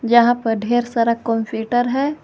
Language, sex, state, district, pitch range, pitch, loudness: Hindi, female, Jharkhand, Garhwa, 230-240 Hz, 235 Hz, -18 LUFS